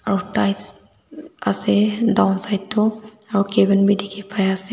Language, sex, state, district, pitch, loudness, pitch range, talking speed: Nagamese, female, Nagaland, Dimapur, 200 Hz, -19 LUFS, 190-215 Hz, 140 wpm